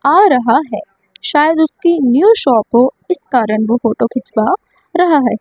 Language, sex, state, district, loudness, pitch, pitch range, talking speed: Hindi, female, Chandigarh, Chandigarh, -13 LUFS, 280 Hz, 235-360 Hz, 165 wpm